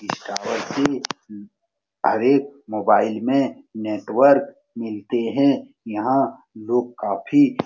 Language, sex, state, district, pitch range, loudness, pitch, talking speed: Hindi, male, Bihar, Saran, 110-140 Hz, -21 LUFS, 135 Hz, 110 wpm